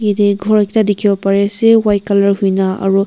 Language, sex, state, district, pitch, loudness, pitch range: Nagamese, female, Nagaland, Kohima, 200 Hz, -13 LUFS, 195-210 Hz